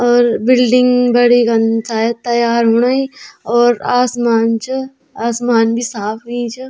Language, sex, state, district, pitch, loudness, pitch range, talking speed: Garhwali, female, Uttarakhand, Tehri Garhwal, 240 Hz, -14 LUFS, 230-250 Hz, 135 wpm